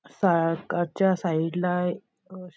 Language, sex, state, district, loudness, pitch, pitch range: Marathi, female, Maharashtra, Nagpur, -25 LUFS, 175 Hz, 165-180 Hz